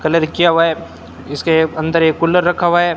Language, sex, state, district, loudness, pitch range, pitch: Hindi, male, Rajasthan, Bikaner, -14 LUFS, 160-175 Hz, 165 Hz